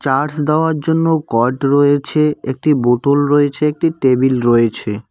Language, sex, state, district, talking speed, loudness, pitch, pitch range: Bengali, male, West Bengal, Cooch Behar, 130 wpm, -15 LUFS, 145 Hz, 130-150 Hz